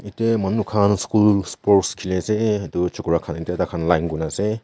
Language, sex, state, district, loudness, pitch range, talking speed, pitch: Nagamese, male, Nagaland, Kohima, -20 LUFS, 90-105 Hz, 170 wpm, 100 Hz